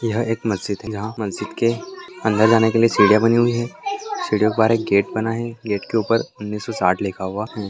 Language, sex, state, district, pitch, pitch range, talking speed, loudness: Hindi, male, Maharashtra, Sindhudurg, 110 Hz, 105-115 Hz, 240 wpm, -20 LUFS